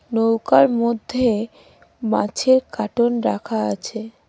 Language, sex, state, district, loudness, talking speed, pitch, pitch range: Bengali, female, West Bengal, Cooch Behar, -20 LUFS, 85 wpm, 230 Hz, 220-240 Hz